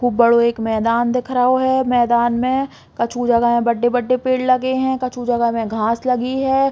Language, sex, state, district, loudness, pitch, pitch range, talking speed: Bundeli, female, Uttar Pradesh, Hamirpur, -17 LUFS, 245 Hz, 235-255 Hz, 205 wpm